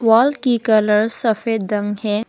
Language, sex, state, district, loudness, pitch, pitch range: Hindi, female, Arunachal Pradesh, Papum Pare, -17 LUFS, 220 Hz, 210-230 Hz